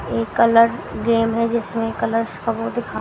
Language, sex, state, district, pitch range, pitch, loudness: Hindi, female, Haryana, Jhajjar, 225-230 Hz, 230 Hz, -19 LUFS